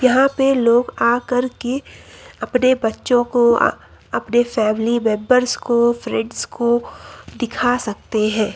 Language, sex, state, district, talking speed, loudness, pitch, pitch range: Hindi, male, Uttar Pradesh, Lucknow, 120 wpm, -18 LUFS, 240 Hz, 230-250 Hz